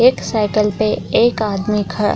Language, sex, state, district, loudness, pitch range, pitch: Hindi, female, Bihar, Madhepura, -17 LUFS, 205-220 Hz, 210 Hz